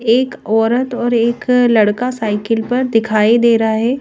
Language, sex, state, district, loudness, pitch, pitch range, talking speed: Hindi, female, Madhya Pradesh, Bhopal, -14 LUFS, 230 Hz, 225-245 Hz, 165 wpm